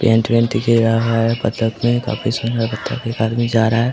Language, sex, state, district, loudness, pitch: Hindi, male, Bihar, Samastipur, -17 LUFS, 115 Hz